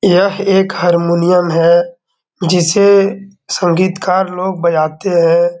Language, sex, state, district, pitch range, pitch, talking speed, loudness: Hindi, male, Bihar, Darbhanga, 170-195 Hz, 180 Hz, 95 wpm, -12 LUFS